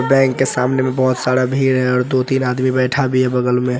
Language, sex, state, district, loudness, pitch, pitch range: Hindi, male, Bihar, Araria, -16 LUFS, 130 Hz, 125-130 Hz